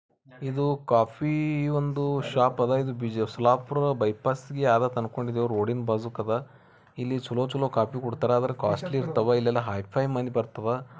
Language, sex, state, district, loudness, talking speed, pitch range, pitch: Kannada, male, Karnataka, Bijapur, -27 LUFS, 140 wpm, 115-135 Hz, 125 Hz